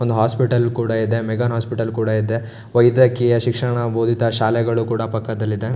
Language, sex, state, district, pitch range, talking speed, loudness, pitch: Kannada, male, Karnataka, Shimoga, 110-120 Hz, 155 wpm, -19 LUFS, 115 Hz